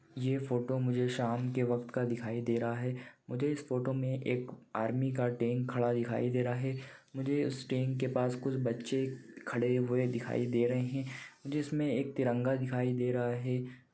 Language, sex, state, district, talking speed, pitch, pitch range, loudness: Hindi, male, Maharashtra, Pune, 190 wpm, 125 Hz, 120-130 Hz, -34 LUFS